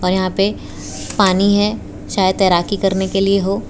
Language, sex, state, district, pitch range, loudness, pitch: Hindi, female, Gujarat, Valsad, 180-195 Hz, -16 LUFS, 190 Hz